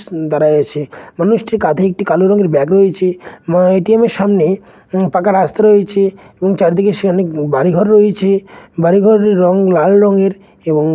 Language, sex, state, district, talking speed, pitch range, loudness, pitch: Bengali, male, West Bengal, Dakshin Dinajpur, 165 wpm, 175-200 Hz, -12 LUFS, 190 Hz